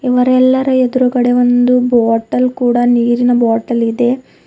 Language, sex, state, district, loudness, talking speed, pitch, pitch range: Kannada, female, Karnataka, Bidar, -12 LUFS, 105 wpm, 245 Hz, 240-255 Hz